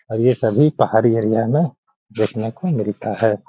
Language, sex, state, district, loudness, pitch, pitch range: Hindi, male, Bihar, Gaya, -18 LUFS, 110 Hz, 110-130 Hz